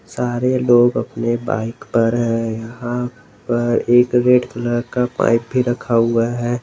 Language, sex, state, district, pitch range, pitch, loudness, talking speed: Hindi, male, Jharkhand, Garhwa, 115-125 Hz, 120 Hz, -18 LUFS, 155 wpm